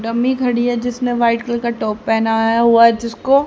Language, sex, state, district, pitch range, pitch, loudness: Hindi, female, Haryana, Rohtak, 230-245 Hz, 235 Hz, -16 LUFS